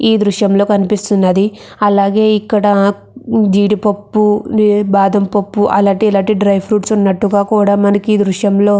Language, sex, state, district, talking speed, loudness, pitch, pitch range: Telugu, female, Andhra Pradesh, Krishna, 115 wpm, -12 LUFS, 205 Hz, 200-210 Hz